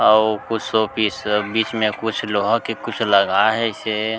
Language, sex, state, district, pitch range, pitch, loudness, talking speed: Chhattisgarhi, male, Chhattisgarh, Sukma, 105-115 Hz, 110 Hz, -19 LUFS, 170 wpm